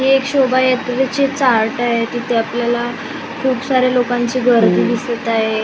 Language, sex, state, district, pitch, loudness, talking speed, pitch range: Marathi, female, Maharashtra, Gondia, 245 Hz, -16 LUFS, 140 wpm, 235-260 Hz